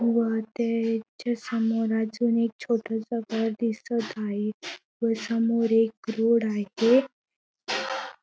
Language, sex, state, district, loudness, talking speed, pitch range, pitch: Marathi, female, Maharashtra, Sindhudurg, -26 LUFS, 100 wpm, 225-235 Hz, 230 Hz